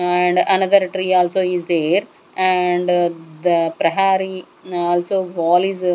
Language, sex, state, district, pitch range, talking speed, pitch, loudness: English, female, Punjab, Kapurthala, 175-185 Hz, 120 wpm, 180 Hz, -18 LUFS